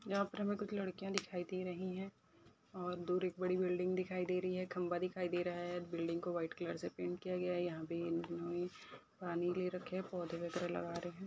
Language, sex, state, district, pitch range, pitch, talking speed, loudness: Hindi, female, Rajasthan, Churu, 175-185 Hz, 180 Hz, 230 wpm, -41 LUFS